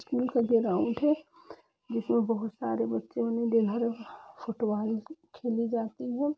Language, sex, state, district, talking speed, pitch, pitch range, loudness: Hindi, female, Jharkhand, Jamtara, 120 wpm, 230 Hz, 220-250 Hz, -30 LUFS